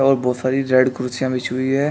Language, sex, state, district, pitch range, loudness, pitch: Hindi, male, Uttar Pradesh, Shamli, 125-135 Hz, -19 LUFS, 130 Hz